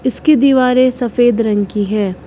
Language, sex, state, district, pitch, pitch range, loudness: Hindi, female, Uttar Pradesh, Lucknow, 240 Hz, 210-255 Hz, -13 LUFS